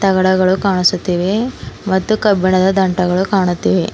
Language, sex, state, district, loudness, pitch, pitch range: Kannada, female, Karnataka, Bidar, -15 LUFS, 190 Hz, 185-195 Hz